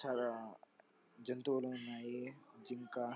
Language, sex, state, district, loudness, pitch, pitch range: Telugu, male, Andhra Pradesh, Anantapur, -43 LUFS, 125 Hz, 120-130 Hz